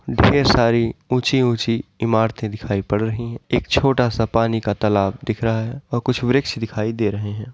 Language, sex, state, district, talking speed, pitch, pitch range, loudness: Hindi, male, Uttar Pradesh, Varanasi, 200 wpm, 115 Hz, 110-125 Hz, -20 LUFS